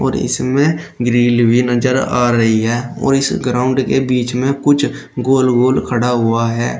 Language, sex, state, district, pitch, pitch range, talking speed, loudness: Hindi, male, Uttar Pradesh, Shamli, 125 Hz, 120-135 Hz, 175 wpm, -15 LUFS